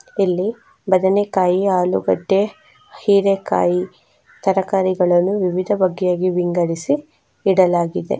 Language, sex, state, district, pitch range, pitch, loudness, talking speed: Kannada, female, Karnataka, Chamarajanagar, 175-195 Hz, 185 Hz, -18 LUFS, 65 wpm